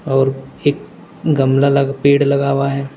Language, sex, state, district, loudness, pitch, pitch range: Hindi, male, Uttar Pradesh, Saharanpur, -16 LUFS, 140 Hz, 135-140 Hz